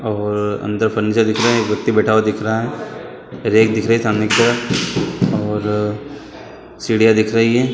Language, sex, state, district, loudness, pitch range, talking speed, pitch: Hindi, male, Chhattisgarh, Bilaspur, -16 LUFS, 105-115 Hz, 195 wpm, 110 Hz